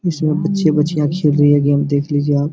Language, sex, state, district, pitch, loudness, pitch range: Hindi, male, Bihar, Supaul, 150 Hz, -15 LUFS, 145-160 Hz